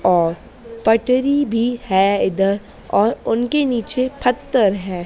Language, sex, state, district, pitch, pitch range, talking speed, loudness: Hindi, female, Madhya Pradesh, Dhar, 230 Hz, 195-255 Hz, 120 wpm, -18 LUFS